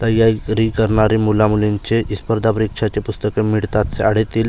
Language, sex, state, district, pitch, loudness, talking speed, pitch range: Marathi, male, Maharashtra, Gondia, 110 Hz, -17 LUFS, 105 wpm, 105-110 Hz